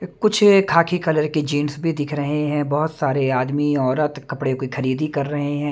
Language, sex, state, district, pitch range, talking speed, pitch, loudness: Hindi, male, Maharashtra, Mumbai Suburban, 140-155 Hz, 200 wpm, 145 Hz, -20 LUFS